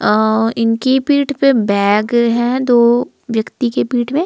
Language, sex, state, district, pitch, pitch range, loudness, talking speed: Hindi, female, Himachal Pradesh, Shimla, 240 Hz, 225-260 Hz, -14 LUFS, 155 wpm